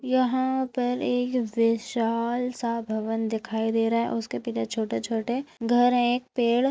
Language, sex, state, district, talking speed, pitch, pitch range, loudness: Hindi, female, Uttarakhand, Tehri Garhwal, 150 wpm, 235 Hz, 225-245 Hz, -26 LUFS